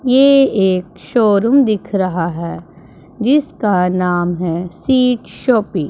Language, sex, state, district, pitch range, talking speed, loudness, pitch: Hindi, female, Punjab, Pathankot, 175-245 Hz, 120 wpm, -15 LUFS, 190 Hz